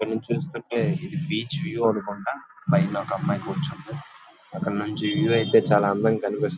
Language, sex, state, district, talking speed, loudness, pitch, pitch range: Telugu, male, Andhra Pradesh, Visakhapatnam, 165 wpm, -25 LUFS, 130 Hz, 110-160 Hz